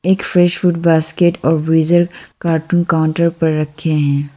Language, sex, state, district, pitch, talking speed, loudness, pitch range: Hindi, female, Arunachal Pradesh, Lower Dibang Valley, 165 Hz, 135 wpm, -15 LUFS, 160-175 Hz